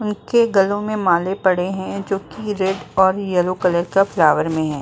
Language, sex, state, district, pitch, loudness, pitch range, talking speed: Hindi, female, Uttar Pradesh, Muzaffarnagar, 190 Hz, -18 LUFS, 180-200 Hz, 185 wpm